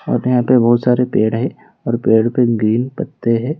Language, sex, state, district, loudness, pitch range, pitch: Hindi, male, Odisha, Khordha, -15 LUFS, 115-125 Hz, 120 Hz